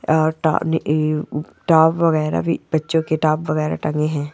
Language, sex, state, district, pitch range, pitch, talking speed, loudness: Hindi, female, Bihar, Purnia, 155-160 Hz, 155 Hz, 165 wpm, -19 LUFS